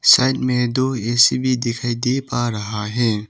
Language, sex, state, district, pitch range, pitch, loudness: Hindi, male, Arunachal Pradesh, Papum Pare, 115-130 Hz, 120 Hz, -18 LUFS